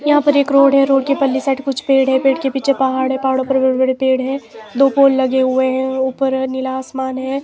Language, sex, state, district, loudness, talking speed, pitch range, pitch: Hindi, female, Himachal Pradesh, Shimla, -15 LUFS, 240 wpm, 260-275 Hz, 265 Hz